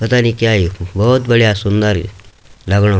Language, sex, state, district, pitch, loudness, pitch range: Garhwali, male, Uttarakhand, Tehri Garhwal, 105 Hz, -14 LUFS, 100-115 Hz